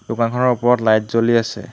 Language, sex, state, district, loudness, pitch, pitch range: Assamese, male, Assam, Hailakandi, -17 LUFS, 115 Hz, 110-120 Hz